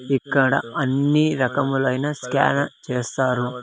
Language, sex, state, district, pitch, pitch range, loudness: Telugu, male, Andhra Pradesh, Sri Satya Sai, 135 Hz, 125-140 Hz, -21 LUFS